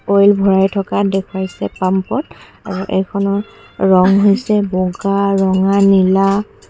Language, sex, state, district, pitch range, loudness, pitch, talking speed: Assamese, female, Assam, Kamrup Metropolitan, 190-200 Hz, -14 LUFS, 195 Hz, 115 wpm